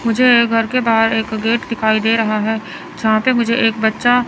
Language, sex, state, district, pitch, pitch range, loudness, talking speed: Hindi, male, Chandigarh, Chandigarh, 225 Hz, 220-235 Hz, -15 LUFS, 210 wpm